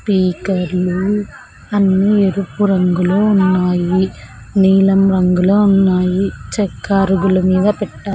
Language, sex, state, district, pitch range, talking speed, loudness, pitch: Telugu, female, Andhra Pradesh, Sri Satya Sai, 185-200 Hz, 95 wpm, -14 LUFS, 190 Hz